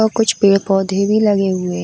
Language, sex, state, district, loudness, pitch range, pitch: Hindi, female, Uttar Pradesh, Gorakhpur, -15 LUFS, 195-215 Hz, 195 Hz